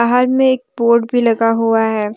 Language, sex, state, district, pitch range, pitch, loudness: Hindi, female, Jharkhand, Deoghar, 225-245 Hz, 235 Hz, -14 LUFS